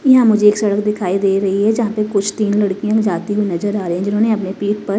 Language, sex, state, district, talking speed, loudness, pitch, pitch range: Hindi, female, Himachal Pradesh, Shimla, 290 wpm, -16 LUFS, 205 Hz, 200-215 Hz